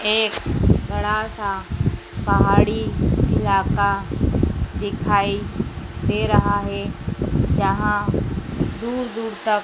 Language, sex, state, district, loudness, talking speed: Hindi, female, Madhya Pradesh, Dhar, -21 LUFS, 80 wpm